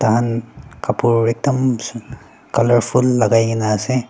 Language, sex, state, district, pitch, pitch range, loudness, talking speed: Nagamese, female, Nagaland, Dimapur, 120 Hz, 115-125 Hz, -17 LUFS, 90 wpm